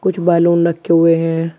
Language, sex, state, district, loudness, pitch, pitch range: Hindi, male, Uttar Pradesh, Shamli, -14 LUFS, 170 Hz, 165-170 Hz